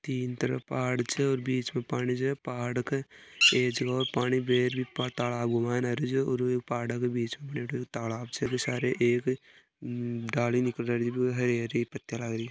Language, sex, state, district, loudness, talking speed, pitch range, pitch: Marwari, male, Rajasthan, Nagaur, -29 LUFS, 165 wpm, 120-130 Hz, 125 Hz